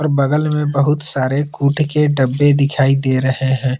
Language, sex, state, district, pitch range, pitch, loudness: Hindi, male, Jharkhand, Palamu, 130-150 Hz, 140 Hz, -15 LUFS